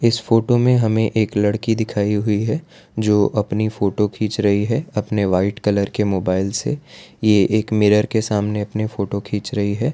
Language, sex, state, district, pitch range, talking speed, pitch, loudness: Hindi, male, Gujarat, Valsad, 100-110 Hz, 185 wpm, 105 Hz, -19 LUFS